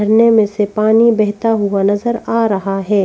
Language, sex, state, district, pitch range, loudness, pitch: Hindi, female, Madhya Pradesh, Bhopal, 200-225 Hz, -14 LUFS, 215 Hz